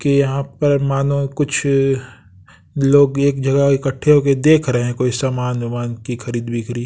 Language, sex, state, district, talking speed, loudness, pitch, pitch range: Hindi, male, Bihar, West Champaran, 175 wpm, -17 LUFS, 135 Hz, 120-140 Hz